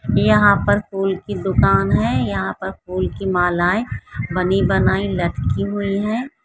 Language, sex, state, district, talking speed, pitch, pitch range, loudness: Hindi, female, Bihar, Jamui, 150 wpm, 190 Hz, 180-200 Hz, -19 LUFS